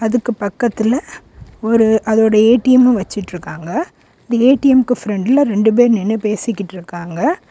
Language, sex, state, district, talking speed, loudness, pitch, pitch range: Tamil, female, Tamil Nadu, Kanyakumari, 110 wpm, -14 LUFS, 225 Hz, 210-245 Hz